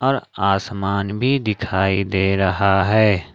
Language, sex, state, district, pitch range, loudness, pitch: Hindi, male, Jharkhand, Ranchi, 95-110 Hz, -19 LUFS, 100 Hz